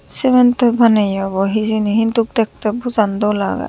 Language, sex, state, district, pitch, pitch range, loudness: Chakma, female, Tripura, Unakoti, 220 Hz, 210-235 Hz, -15 LUFS